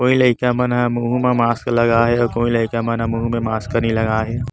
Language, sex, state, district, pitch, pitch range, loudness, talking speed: Chhattisgarhi, male, Chhattisgarh, Bastar, 115 Hz, 115-120 Hz, -18 LUFS, 250 wpm